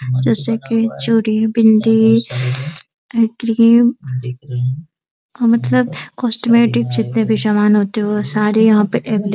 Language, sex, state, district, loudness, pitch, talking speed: Hindi, female, Bihar, Araria, -15 LUFS, 215 Hz, 130 wpm